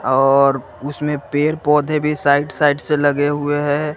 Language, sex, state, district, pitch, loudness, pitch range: Hindi, male, Bihar, West Champaran, 145 Hz, -17 LUFS, 145-150 Hz